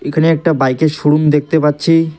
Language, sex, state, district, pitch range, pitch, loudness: Bengali, male, West Bengal, Alipurduar, 150-165 Hz, 155 Hz, -13 LUFS